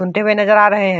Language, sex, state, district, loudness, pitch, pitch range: Hindi, male, Bihar, Supaul, -13 LUFS, 205 Hz, 190-210 Hz